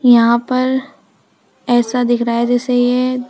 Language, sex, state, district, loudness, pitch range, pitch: Hindi, female, Uttar Pradesh, Shamli, -15 LUFS, 240-255 Hz, 245 Hz